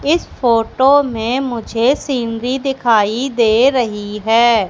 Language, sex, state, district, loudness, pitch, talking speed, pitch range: Hindi, female, Madhya Pradesh, Katni, -15 LUFS, 240 Hz, 130 wpm, 225-265 Hz